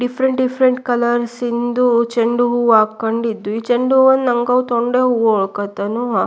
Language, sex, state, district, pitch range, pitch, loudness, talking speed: Kannada, female, Karnataka, Shimoga, 230-250 Hz, 240 Hz, -16 LUFS, 125 wpm